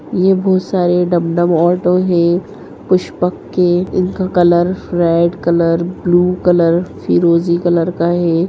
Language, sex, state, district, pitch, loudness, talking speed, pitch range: Hindi, female, Bihar, Sitamarhi, 175 Hz, -14 LUFS, 125 wpm, 170-180 Hz